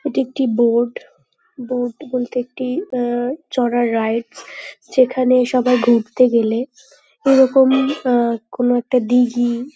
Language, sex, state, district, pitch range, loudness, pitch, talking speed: Bengali, female, West Bengal, North 24 Parganas, 240-265 Hz, -17 LUFS, 250 Hz, 110 wpm